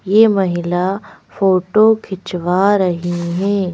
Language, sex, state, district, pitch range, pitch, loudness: Hindi, female, Madhya Pradesh, Bhopal, 175-200 Hz, 190 Hz, -16 LUFS